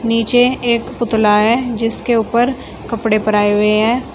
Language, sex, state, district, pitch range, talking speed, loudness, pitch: Hindi, female, Uttar Pradesh, Shamli, 215-240 Hz, 145 wpm, -15 LUFS, 230 Hz